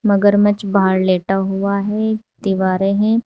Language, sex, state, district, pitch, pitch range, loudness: Hindi, female, Uttar Pradesh, Saharanpur, 200 Hz, 195-210 Hz, -16 LUFS